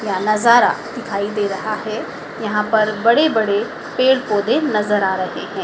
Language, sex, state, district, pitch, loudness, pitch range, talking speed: Hindi, female, Madhya Pradesh, Dhar, 215 Hz, -17 LUFS, 205-225 Hz, 170 wpm